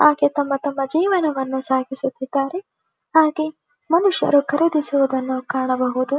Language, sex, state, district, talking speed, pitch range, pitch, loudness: Kannada, female, Karnataka, Dharwad, 75 wpm, 265-310 Hz, 285 Hz, -20 LUFS